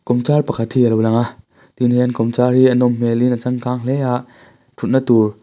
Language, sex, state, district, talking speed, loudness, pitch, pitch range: Mizo, male, Mizoram, Aizawl, 230 wpm, -16 LUFS, 125 Hz, 115-125 Hz